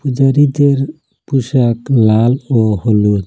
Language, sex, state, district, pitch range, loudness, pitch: Bengali, male, Assam, Hailakandi, 110-140 Hz, -13 LUFS, 130 Hz